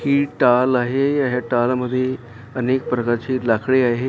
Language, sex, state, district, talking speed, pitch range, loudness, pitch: Marathi, male, Maharashtra, Gondia, 160 wpm, 120-130 Hz, -19 LUFS, 125 Hz